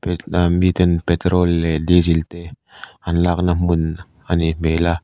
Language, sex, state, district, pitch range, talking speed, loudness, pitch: Mizo, male, Mizoram, Aizawl, 85-90 Hz, 145 wpm, -18 LUFS, 85 Hz